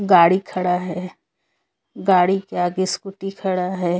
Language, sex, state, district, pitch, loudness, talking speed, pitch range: Hindi, female, Chhattisgarh, Korba, 185 Hz, -20 LUFS, 135 wpm, 180-190 Hz